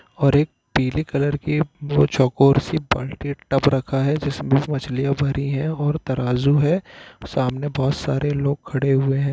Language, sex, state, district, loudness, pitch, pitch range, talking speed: Hindi, male, Bihar, Jahanabad, -21 LUFS, 140 Hz, 135-145 Hz, 165 wpm